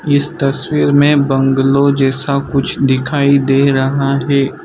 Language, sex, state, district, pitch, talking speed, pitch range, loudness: Hindi, male, Gujarat, Valsad, 140 Hz, 130 wpm, 135-140 Hz, -13 LUFS